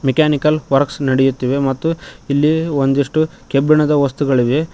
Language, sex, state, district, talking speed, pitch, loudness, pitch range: Kannada, male, Karnataka, Koppal, 100 wpm, 140 Hz, -16 LUFS, 135-155 Hz